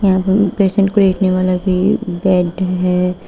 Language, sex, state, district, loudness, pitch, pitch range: Hindi, female, Uttar Pradesh, Shamli, -15 LUFS, 185 Hz, 180-195 Hz